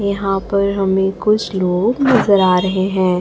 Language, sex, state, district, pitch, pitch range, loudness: Hindi, female, Chhattisgarh, Raipur, 195 Hz, 190-200 Hz, -15 LUFS